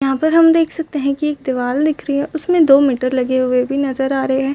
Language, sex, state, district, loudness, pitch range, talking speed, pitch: Hindi, female, Chhattisgarh, Raigarh, -16 LUFS, 265-310 Hz, 290 wpm, 275 Hz